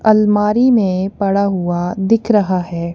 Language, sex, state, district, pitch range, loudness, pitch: Hindi, female, Punjab, Kapurthala, 185-215 Hz, -15 LUFS, 200 Hz